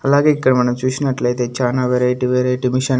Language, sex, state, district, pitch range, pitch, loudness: Telugu, male, Andhra Pradesh, Annamaya, 125-130 Hz, 125 Hz, -17 LUFS